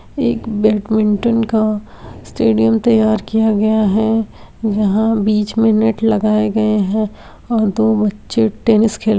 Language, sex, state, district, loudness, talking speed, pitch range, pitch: Hindi, female, Bihar, Gaya, -15 LUFS, 150 wpm, 210-220 Hz, 215 Hz